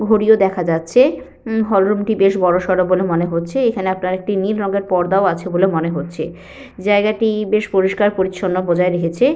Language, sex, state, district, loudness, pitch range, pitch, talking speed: Bengali, female, West Bengal, Malda, -17 LUFS, 180-210 Hz, 190 Hz, 185 wpm